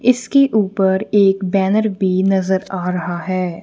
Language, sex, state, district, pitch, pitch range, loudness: Hindi, female, Punjab, Kapurthala, 190 Hz, 185-210 Hz, -16 LUFS